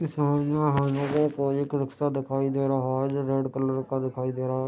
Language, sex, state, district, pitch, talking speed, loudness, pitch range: Hindi, male, Bihar, Madhepura, 135 Hz, 245 wpm, -27 LUFS, 135-145 Hz